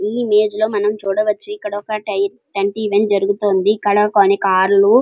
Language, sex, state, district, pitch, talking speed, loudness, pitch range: Telugu, female, Andhra Pradesh, Krishna, 205 Hz, 155 wpm, -16 LUFS, 200-210 Hz